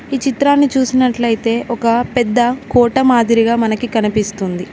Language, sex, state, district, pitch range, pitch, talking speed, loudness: Telugu, female, Telangana, Mahabubabad, 230-255 Hz, 240 Hz, 115 wpm, -14 LUFS